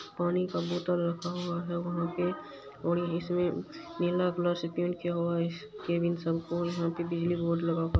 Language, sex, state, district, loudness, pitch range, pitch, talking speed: Maithili, female, Bihar, Supaul, -31 LUFS, 170-175 Hz, 175 Hz, 170 wpm